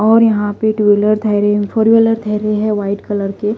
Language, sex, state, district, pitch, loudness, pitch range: Hindi, female, Delhi, New Delhi, 210 Hz, -14 LUFS, 205-220 Hz